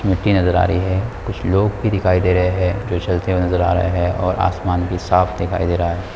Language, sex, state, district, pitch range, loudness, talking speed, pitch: Hindi, male, Bihar, Madhepura, 90-95 Hz, -18 LUFS, 265 wpm, 90 Hz